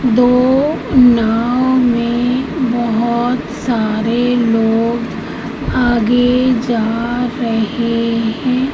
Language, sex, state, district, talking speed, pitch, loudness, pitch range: Hindi, female, Madhya Pradesh, Katni, 70 wpm, 240 Hz, -14 LUFS, 230-250 Hz